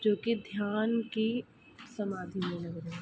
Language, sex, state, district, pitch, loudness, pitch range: Hindi, female, Uttar Pradesh, Ghazipur, 210 Hz, -34 LUFS, 185-230 Hz